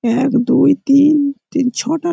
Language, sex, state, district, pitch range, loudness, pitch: Bengali, male, West Bengal, Malda, 255-295 Hz, -14 LUFS, 280 Hz